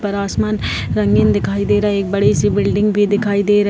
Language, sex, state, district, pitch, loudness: Hindi, female, Bihar, Jahanabad, 200 Hz, -16 LUFS